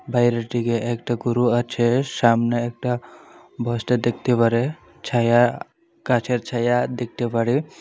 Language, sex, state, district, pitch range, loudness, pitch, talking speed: Bengali, male, Tripura, Unakoti, 120-125 Hz, -21 LUFS, 120 Hz, 110 wpm